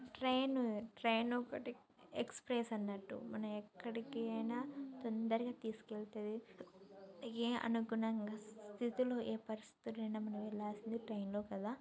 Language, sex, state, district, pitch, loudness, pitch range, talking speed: Telugu, female, Telangana, Nalgonda, 225 Hz, -42 LUFS, 215-245 Hz, 95 wpm